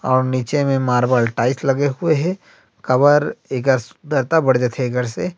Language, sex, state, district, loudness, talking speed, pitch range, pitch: Chhattisgarhi, male, Chhattisgarh, Rajnandgaon, -18 LUFS, 165 wpm, 125-145 Hz, 130 Hz